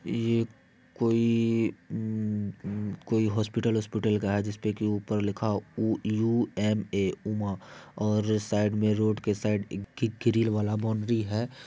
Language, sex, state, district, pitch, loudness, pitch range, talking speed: Hindi, male, Bihar, Supaul, 110 Hz, -28 LUFS, 105-115 Hz, 150 wpm